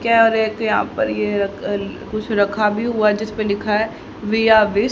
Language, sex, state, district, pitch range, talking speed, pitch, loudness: Hindi, female, Haryana, Charkhi Dadri, 205-220 Hz, 195 wpm, 215 Hz, -18 LUFS